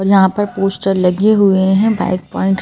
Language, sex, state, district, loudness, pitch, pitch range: Hindi, male, Madhya Pradesh, Bhopal, -14 LUFS, 195 Hz, 190-200 Hz